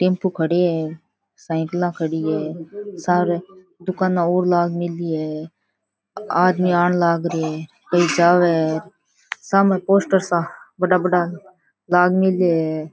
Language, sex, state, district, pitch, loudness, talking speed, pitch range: Rajasthani, female, Rajasthan, Churu, 175 Hz, -19 LUFS, 135 wpm, 165-185 Hz